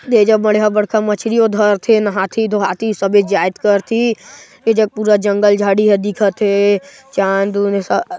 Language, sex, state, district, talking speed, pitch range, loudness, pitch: Chhattisgarhi, male, Chhattisgarh, Sarguja, 155 wpm, 200-220 Hz, -14 LUFS, 210 Hz